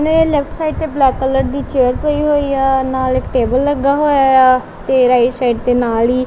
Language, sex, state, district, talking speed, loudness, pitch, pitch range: Punjabi, female, Punjab, Kapurthala, 230 wpm, -14 LUFS, 265 Hz, 255-285 Hz